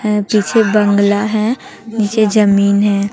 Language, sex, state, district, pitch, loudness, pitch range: Hindi, female, Chhattisgarh, Raipur, 210 Hz, -13 LUFS, 205-220 Hz